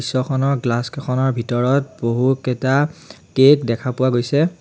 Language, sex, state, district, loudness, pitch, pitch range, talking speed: Assamese, male, Assam, Sonitpur, -18 LUFS, 130 Hz, 125-140 Hz, 130 wpm